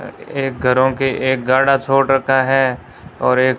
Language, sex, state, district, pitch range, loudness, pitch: Hindi, male, Rajasthan, Bikaner, 130-135 Hz, -16 LUFS, 135 Hz